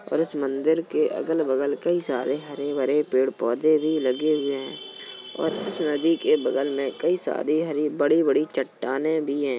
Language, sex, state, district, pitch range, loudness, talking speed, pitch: Hindi, female, Uttar Pradesh, Jalaun, 135-160 Hz, -24 LUFS, 170 wpm, 150 Hz